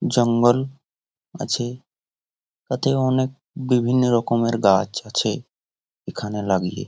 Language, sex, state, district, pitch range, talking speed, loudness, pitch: Bengali, male, West Bengal, Jhargram, 105-130 Hz, 95 wpm, -21 LUFS, 120 Hz